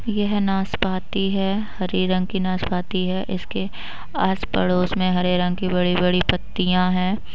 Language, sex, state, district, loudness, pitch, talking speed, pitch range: Hindi, female, Uttar Pradesh, Budaun, -22 LUFS, 185 Hz, 145 wpm, 180-195 Hz